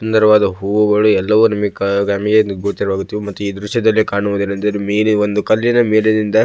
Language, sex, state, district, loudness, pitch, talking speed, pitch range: Kannada, male, Karnataka, Belgaum, -15 LUFS, 105 Hz, 140 wpm, 100-110 Hz